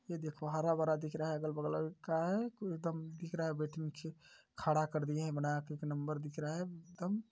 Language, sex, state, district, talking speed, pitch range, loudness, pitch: Hindi, male, Chhattisgarh, Balrampur, 195 wpm, 155-170 Hz, -39 LUFS, 155 Hz